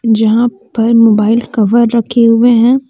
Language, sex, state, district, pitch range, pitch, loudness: Hindi, female, Jharkhand, Deoghar, 225-240 Hz, 230 Hz, -10 LUFS